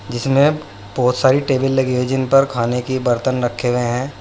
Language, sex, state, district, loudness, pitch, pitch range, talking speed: Hindi, male, Uttar Pradesh, Saharanpur, -17 LUFS, 130 Hz, 120-135 Hz, 200 wpm